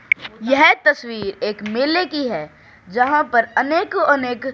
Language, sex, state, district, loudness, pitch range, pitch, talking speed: Hindi, male, Haryana, Charkhi Dadri, -17 LUFS, 230-300 Hz, 265 Hz, 130 wpm